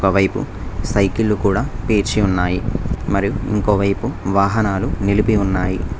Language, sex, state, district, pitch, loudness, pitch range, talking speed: Telugu, male, Telangana, Mahabubabad, 100 Hz, -18 LUFS, 95-105 Hz, 110 wpm